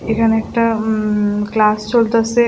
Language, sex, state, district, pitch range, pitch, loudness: Bengali, female, Tripura, West Tripura, 215-230 Hz, 225 Hz, -16 LUFS